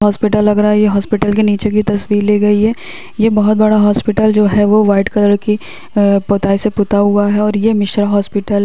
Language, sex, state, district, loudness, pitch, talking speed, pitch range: Hindi, female, Bihar, Muzaffarpur, -12 LUFS, 210 Hz, 235 wpm, 205-215 Hz